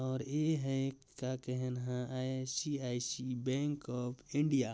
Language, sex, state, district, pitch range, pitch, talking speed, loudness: Chhattisgarhi, male, Chhattisgarh, Jashpur, 125-140 Hz, 130 Hz, 175 wpm, -37 LUFS